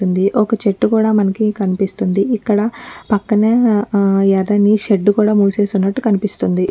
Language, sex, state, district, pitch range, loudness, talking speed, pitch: Telugu, female, Telangana, Nalgonda, 195-215 Hz, -15 LUFS, 105 wpm, 205 Hz